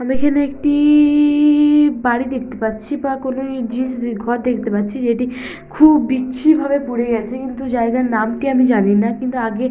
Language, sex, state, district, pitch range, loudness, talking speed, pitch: Bengali, female, West Bengal, Malda, 235-280 Hz, -16 LUFS, 175 wpm, 255 Hz